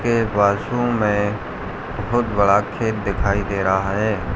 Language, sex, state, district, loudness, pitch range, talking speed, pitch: Hindi, male, Uttar Pradesh, Ghazipur, -20 LUFS, 100-110 Hz, 140 wpm, 105 Hz